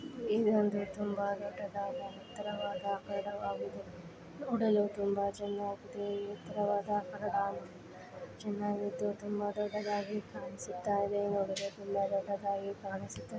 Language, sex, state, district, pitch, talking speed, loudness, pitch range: Kannada, female, Karnataka, Bijapur, 205 Hz, 85 wpm, -36 LUFS, 200-205 Hz